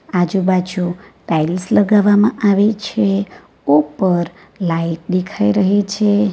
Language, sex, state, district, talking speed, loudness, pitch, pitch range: Gujarati, female, Gujarat, Valsad, 95 wpm, -16 LUFS, 190 Hz, 175-205 Hz